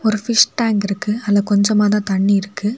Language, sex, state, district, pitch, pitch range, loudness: Tamil, female, Tamil Nadu, Kanyakumari, 210 Hz, 200-215 Hz, -16 LUFS